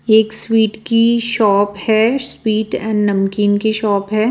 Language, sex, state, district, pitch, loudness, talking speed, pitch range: Hindi, female, Bihar, West Champaran, 220 Hz, -15 LUFS, 155 wpm, 205-225 Hz